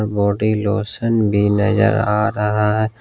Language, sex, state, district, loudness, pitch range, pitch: Hindi, male, Jharkhand, Ranchi, -17 LUFS, 105-110 Hz, 105 Hz